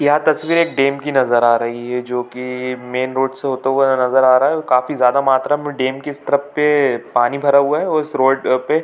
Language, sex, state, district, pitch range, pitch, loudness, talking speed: Hindi, male, Jharkhand, Sahebganj, 125-145 Hz, 135 Hz, -16 LUFS, 230 wpm